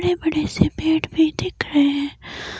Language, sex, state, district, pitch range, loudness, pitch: Hindi, female, Himachal Pradesh, Shimla, 290-340 Hz, -20 LUFS, 320 Hz